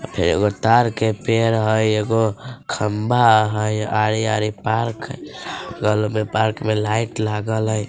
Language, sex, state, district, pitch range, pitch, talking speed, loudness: Bajjika, female, Bihar, Vaishali, 105-115 Hz, 110 Hz, 145 wpm, -19 LUFS